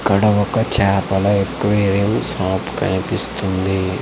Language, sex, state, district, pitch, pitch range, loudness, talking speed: Telugu, male, Andhra Pradesh, Manyam, 100 Hz, 95-105 Hz, -18 LUFS, 90 wpm